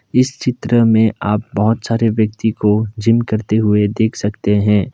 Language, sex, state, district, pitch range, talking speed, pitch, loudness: Hindi, male, Assam, Kamrup Metropolitan, 105-115 Hz, 170 wpm, 110 Hz, -15 LUFS